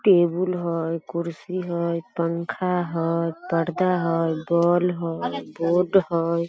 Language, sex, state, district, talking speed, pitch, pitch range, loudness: Maithili, female, Bihar, Samastipur, 120 wpm, 170 Hz, 165-180 Hz, -24 LUFS